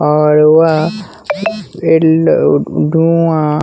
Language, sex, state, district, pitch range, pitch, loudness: Hindi, male, Bihar, West Champaran, 150-165 Hz, 160 Hz, -11 LUFS